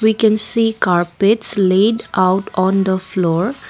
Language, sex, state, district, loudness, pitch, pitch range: English, female, Assam, Kamrup Metropolitan, -15 LUFS, 195 Hz, 185-220 Hz